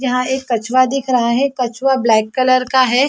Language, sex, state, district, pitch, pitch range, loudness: Hindi, female, Chhattisgarh, Bastar, 255 Hz, 240-265 Hz, -15 LUFS